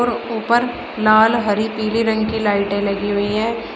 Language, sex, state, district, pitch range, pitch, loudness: Hindi, female, Uttar Pradesh, Shamli, 205-230 Hz, 220 Hz, -18 LUFS